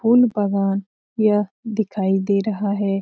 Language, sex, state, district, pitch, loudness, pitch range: Hindi, female, Bihar, Lakhisarai, 205 Hz, -20 LUFS, 195-215 Hz